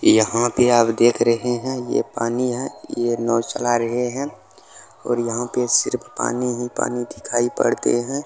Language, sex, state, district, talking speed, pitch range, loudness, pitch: Maithili, male, Bihar, Supaul, 175 wpm, 115-125 Hz, -20 LUFS, 120 Hz